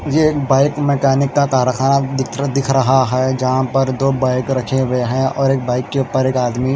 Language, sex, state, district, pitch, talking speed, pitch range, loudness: Hindi, male, Haryana, Charkhi Dadri, 135 Hz, 195 wpm, 130-135 Hz, -16 LUFS